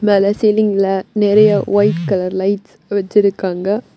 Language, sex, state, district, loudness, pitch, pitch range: Tamil, female, Tamil Nadu, Kanyakumari, -15 LUFS, 200 Hz, 195-205 Hz